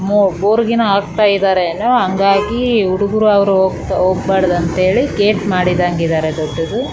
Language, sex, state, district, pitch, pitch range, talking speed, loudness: Kannada, female, Karnataka, Raichur, 195 Hz, 180-205 Hz, 80 wpm, -14 LUFS